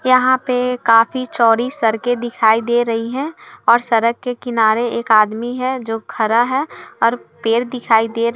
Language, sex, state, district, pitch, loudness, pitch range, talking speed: Hindi, female, Bihar, Kishanganj, 240 Hz, -16 LUFS, 225-250 Hz, 180 wpm